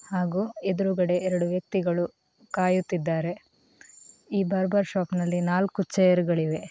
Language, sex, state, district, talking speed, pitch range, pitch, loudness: Kannada, female, Karnataka, Mysore, 90 wpm, 175-195 Hz, 185 Hz, -26 LUFS